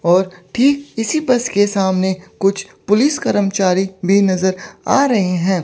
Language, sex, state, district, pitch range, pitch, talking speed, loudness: Hindi, female, Chandigarh, Chandigarh, 185-230 Hz, 195 Hz, 150 wpm, -16 LUFS